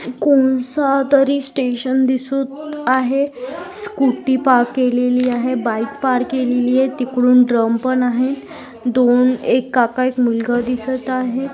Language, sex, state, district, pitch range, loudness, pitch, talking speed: Hindi, female, Maharashtra, Aurangabad, 250-270 Hz, -17 LUFS, 255 Hz, 125 wpm